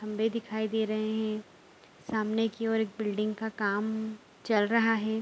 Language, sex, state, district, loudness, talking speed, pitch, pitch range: Hindi, female, Bihar, Araria, -30 LUFS, 170 wpm, 220 Hz, 215-220 Hz